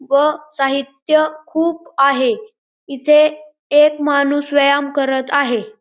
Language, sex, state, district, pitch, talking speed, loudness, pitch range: Marathi, male, Maharashtra, Pune, 290 Hz, 105 wpm, -16 LUFS, 275-305 Hz